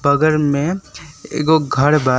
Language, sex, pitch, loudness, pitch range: Bhojpuri, male, 150 Hz, -16 LUFS, 140-155 Hz